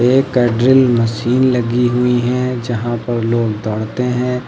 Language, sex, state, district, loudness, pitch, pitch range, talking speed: Hindi, male, Uttar Pradesh, Lucknow, -15 LUFS, 125 Hz, 120-125 Hz, 145 wpm